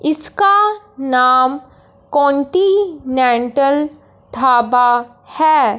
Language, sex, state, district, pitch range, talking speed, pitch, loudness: Hindi, female, Punjab, Fazilka, 255-335 Hz, 50 wpm, 280 Hz, -14 LUFS